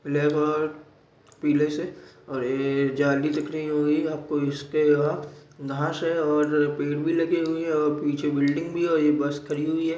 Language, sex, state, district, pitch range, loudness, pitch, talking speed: Hindi, male, Chhattisgarh, Raigarh, 145-155 Hz, -25 LUFS, 150 Hz, 180 wpm